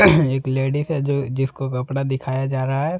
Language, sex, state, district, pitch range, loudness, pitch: Hindi, male, Jharkhand, Deoghar, 130-140 Hz, -21 LUFS, 135 Hz